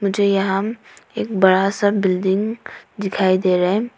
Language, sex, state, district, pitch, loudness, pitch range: Hindi, female, Arunachal Pradesh, Papum Pare, 195 Hz, -18 LUFS, 190-205 Hz